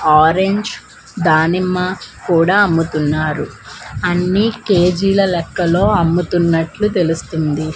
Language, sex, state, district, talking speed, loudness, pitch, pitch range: Telugu, female, Andhra Pradesh, Manyam, 70 wpm, -15 LUFS, 175 Hz, 160-190 Hz